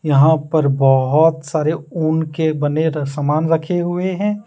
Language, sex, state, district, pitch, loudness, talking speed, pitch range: Hindi, male, Jharkhand, Deoghar, 155 Hz, -17 LUFS, 160 wpm, 150-165 Hz